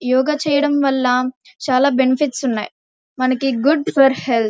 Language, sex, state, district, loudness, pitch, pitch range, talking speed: Telugu, female, Andhra Pradesh, Krishna, -17 LUFS, 265 Hz, 255-285 Hz, 145 wpm